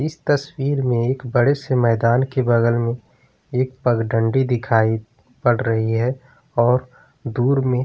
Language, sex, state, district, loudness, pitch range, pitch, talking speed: Hindi, male, Bihar, Vaishali, -20 LUFS, 115-135 Hz, 125 Hz, 145 wpm